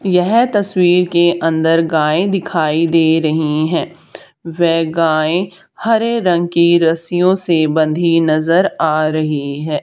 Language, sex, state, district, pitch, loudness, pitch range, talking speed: Hindi, male, Haryana, Charkhi Dadri, 165 Hz, -14 LUFS, 155-180 Hz, 130 wpm